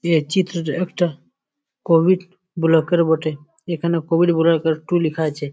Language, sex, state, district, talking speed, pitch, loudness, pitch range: Bengali, male, West Bengal, Jalpaiguri, 150 wpm, 165 Hz, -19 LUFS, 160-175 Hz